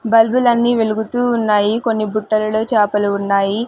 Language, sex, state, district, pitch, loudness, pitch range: Telugu, female, Andhra Pradesh, Sri Satya Sai, 220 Hz, -16 LUFS, 210-230 Hz